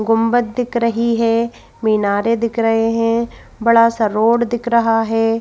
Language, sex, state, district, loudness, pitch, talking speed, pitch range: Hindi, female, Madhya Pradesh, Bhopal, -16 LUFS, 230 Hz, 155 wpm, 225-235 Hz